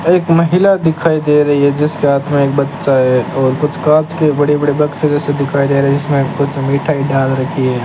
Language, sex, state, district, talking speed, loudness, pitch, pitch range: Hindi, male, Rajasthan, Bikaner, 230 wpm, -13 LUFS, 145 Hz, 140-150 Hz